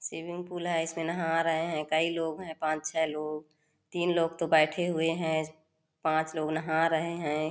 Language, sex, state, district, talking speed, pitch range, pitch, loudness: Hindi, female, Chhattisgarh, Korba, 190 wpm, 155-165 Hz, 160 Hz, -30 LUFS